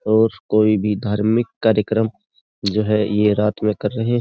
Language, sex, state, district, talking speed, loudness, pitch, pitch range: Hindi, male, Uttar Pradesh, Jyotiba Phule Nagar, 185 wpm, -19 LUFS, 105 Hz, 105-110 Hz